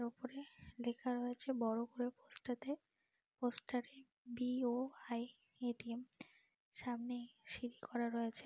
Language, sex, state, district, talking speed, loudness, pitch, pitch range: Bengali, female, West Bengal, Malda, 90 wpm, -44 LUFS, 245 Hz, 240-250 Hz